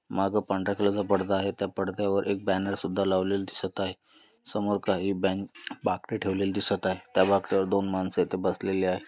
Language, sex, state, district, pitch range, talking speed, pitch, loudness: Marathi, male, Maharashtra, Dhule, 95-100 Hz, 185 wpm, 100 Hz, -28 LUFS